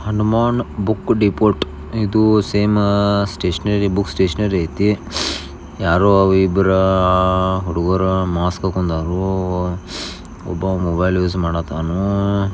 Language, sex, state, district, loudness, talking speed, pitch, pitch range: Kannada, male, Karnataka, Belgaum, -17 LUFS, 85 wpm, 95 Hz, 90-100 Hz